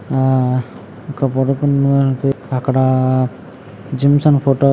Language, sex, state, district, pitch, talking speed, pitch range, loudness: Telugu, male, Andhra Pradesh, Srikakulam, 130 Hz, 75 wpm, 130-140 Hz, -15 LUFS